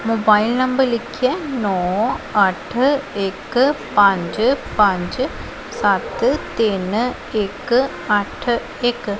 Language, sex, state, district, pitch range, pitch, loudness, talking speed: Punjabi, female, Punjab, Pathankot, 200-255 Hz, 225 Hz, -19 LUFS, 85 wpm